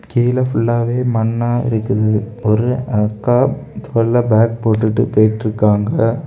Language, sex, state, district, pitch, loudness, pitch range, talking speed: Tamil, male, Tamil Nadu, Kanyakumari, 115 Hz, -16 LUFS, 110-120 Hz, 105 wpm